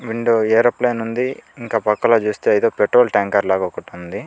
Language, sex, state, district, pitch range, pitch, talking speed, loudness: Telugu, male, Andhra Pradesh, Chittoor, 105-120 Hz, 115 Hz, 155 wpm, -17 LUFS